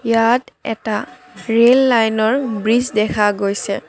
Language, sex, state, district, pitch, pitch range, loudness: Assamese, female, Assam, Kamrup Metropolitan, 225 Hz, 215-240 Hz, -16 LUFS